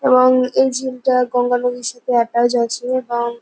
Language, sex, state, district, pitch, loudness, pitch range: Bengali, female, West Bengal, North 24 Parganas, 245 Hz, -17 LUFS, 240-255 Hz